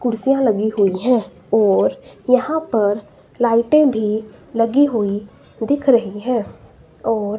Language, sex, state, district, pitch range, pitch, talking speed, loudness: Hindi, female, Himachal Pradesh, Shimla, 215-255 Hz, 230 Hz, 120 wpm, -18 LUFS